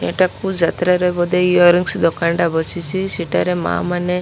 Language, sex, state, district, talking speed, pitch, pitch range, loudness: Odia, female, Odisha, Malkangiri, 140 wpm, 175 Hz, 170-180 Hz, -17 LUFS